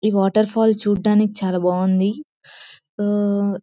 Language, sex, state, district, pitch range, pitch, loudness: Telugu, female, Telangana, Nalgonda, 195-215 Hz, 205 Hz, -19 LUFS